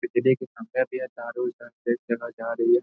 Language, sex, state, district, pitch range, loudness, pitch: Hindi, male, Bihar, Darbhanga, 120-130 Hz, -27 LUFS, 120 Hz